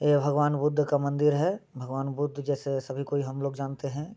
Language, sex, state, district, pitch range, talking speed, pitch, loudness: Hindi, male, Bihar, Muzaffarpur, 140-150 Hz, 230 wpm, 145 Hz, -28 LUFS